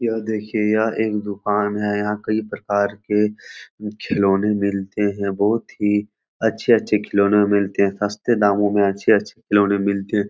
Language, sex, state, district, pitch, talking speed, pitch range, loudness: Hindi, male, Bihar, Jahanabad, 105 Hz, 155 wpm, 100-105 Hz, -20 LUFS